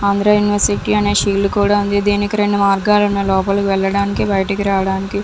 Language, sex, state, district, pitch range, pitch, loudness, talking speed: Telugu, female, Andhra Pradesh, Visakhapatnam, 195-205 Hz, 200 Hz, -15 LUFS, 160 wpm